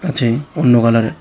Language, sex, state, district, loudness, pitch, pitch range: Bengali, male, Tripura, West Tripura, -14 LUFS, 120 Hz, 115-145 Hz